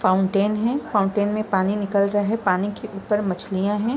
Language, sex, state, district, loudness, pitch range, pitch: Hindi, female, Bihar, Gopalganj, -22 LUFS, 195-215 Hz, 205 Hz